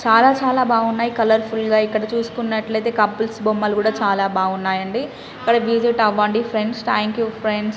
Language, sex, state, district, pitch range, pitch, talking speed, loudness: Telugu, female, Telangana, Karimnagar, 215-230 Hz, 220 Hz, 155 wpm, -19 LUFS